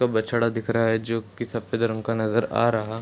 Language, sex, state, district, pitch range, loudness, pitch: Hindi, male, Bihar, Bhagalpur, 110-115 Hz, -24 LUFS, 115 Hz